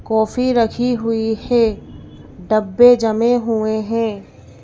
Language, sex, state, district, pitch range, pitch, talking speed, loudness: Hindi, female, Madhya Pradesh, Bhopal, 210-235 Hz, 225 Hz, 105 wpm, -16 LUFS